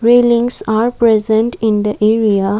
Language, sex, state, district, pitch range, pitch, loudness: English, female, Assam, Kamrup Metropolitan, 210-235 Hz, 220 Hz, -13 LUFS